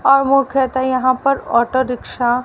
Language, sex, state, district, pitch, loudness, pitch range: Hindi, female, Haryana, Rohtak, 260 Hz, -16 LUFS, 250-275 Hz